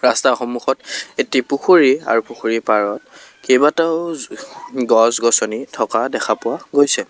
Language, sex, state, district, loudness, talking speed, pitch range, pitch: Assamese, male, Assam, Kamrup Metropolitan, -17 LUFS, 110 wpm, 115-145 Hz, 130 Hz